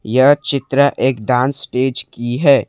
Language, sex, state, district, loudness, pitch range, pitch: Hindi, male, Assam, Kamrup Metropolitan, -15 LUFS, 125-140 Hz, 130 Hz